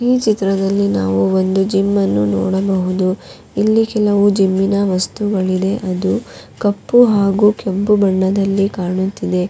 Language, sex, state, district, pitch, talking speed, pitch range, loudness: Kannada, female, Karnataka, Raichur, 195 Hz, 100 wpm, 185-205 Hz, -15 LUFS